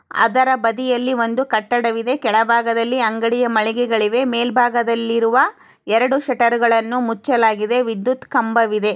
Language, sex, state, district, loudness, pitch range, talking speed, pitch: Kannada, female, Karnataka, Chamarajanagar, -17 LUFS, 225-250 Hz, 125 wpm, 235 Hz